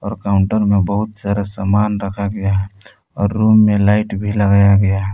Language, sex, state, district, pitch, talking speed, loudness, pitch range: Hindi, male, Jharkhand, Palamu, 100 Hz, 185 wpm, -15 LUFS, 100-105 Hz